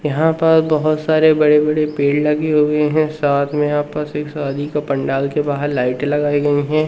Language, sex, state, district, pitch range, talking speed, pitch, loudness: Hindi, male, Madhya Pradesh, Umaria, 145-155 Hz, 210 wpm, 150 Hz, -16 LUFS